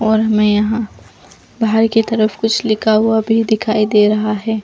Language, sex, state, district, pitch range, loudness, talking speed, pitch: Hindi, female, Chhattisgarh, Bastar, 215-225 Hz, -14 LUFS, 180 wpm, 220 Hz